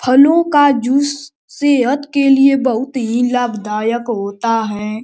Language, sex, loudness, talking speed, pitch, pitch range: Hindi, male, -14 LUFS, 130 wpm, 255 Hz, 230-285 Hz